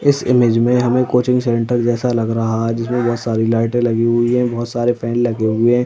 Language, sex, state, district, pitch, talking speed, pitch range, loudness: Hindi, male, Uttar Pradesh, Hamirpur, 120 Hz, 235 wpm, 115-125 Hz, -16 LUFS